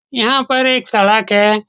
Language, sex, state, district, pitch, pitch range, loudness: Hindi, male, Bihar, Saran, 220 Hz, 210-260 Hz, -13 LUFS